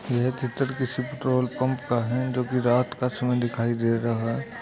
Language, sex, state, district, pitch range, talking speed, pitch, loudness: Hindi, male, Uttar Pradesh, Etah, 120-130 Hz, 195 wpm, 125 Hz, -26 LUFS